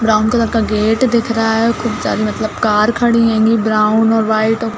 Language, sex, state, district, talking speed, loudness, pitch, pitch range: Hindi, female, Chhattisgarh, Bilaspur, 225 wpm, -14 LUFS, 225 Hz, 215-230 Hz